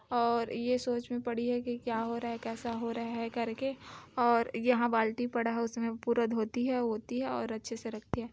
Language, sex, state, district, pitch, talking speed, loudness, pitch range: Hindi, female, Chhattisgarh, Bilaspur, 235 Hz, 235 wpm, -33 LUFS, 230-245 Hz